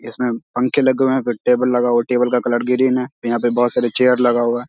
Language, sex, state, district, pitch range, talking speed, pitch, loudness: Hindi, male, Bihar, Samastipur, 120-125 Hz, 295 wpm, 125 Hz, -17 LUFS